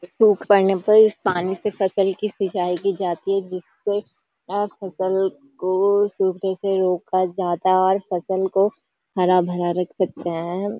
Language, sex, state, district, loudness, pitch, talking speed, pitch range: Hindi, female, Uttarakhand, Uttarkashi, -21 LUFS, 190 Hz, 160 wpm, 180-200 Hz